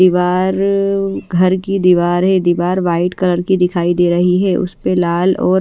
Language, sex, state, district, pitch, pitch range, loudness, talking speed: Hindi, female, Odisha, Malkangiri, 180 Hz, 175-190 Hz, -14 LUFS, 180 wpm